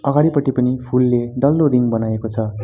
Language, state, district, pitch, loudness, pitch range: Nepali, West Bengal, Darjeeling, 125 Hz, -17 LUFS, 115-140 Hz